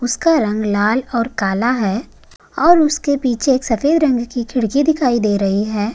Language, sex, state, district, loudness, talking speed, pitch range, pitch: Hindi, male, Uttarakhand, Tehri Garhwal, -16 LUFS, 180 wpm, 215-285 Hz, 245 Hz